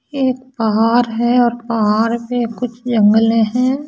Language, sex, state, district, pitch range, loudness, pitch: Bhojpuri, male, Bihar, Saran, 225-245 Hz, -15 LUFS, 235 Hz